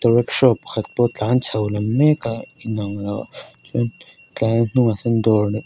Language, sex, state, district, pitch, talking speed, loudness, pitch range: Mizo, female, Mizoram, Aizawl, 115 Hz, 160 wpm, -20 LUFS, 105-120 Hz